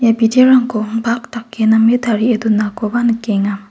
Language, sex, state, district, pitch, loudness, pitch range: Garo, female, Meghalaya, West Garo Hills, 225 Hz, -14 LUFS, 215-240 Hz